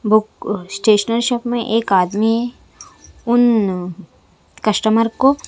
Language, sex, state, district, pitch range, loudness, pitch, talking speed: Hindi, female, Punjab, Kapurthala, 205-240 Hz, -17 LUFS, 220 Hz, 100 wpm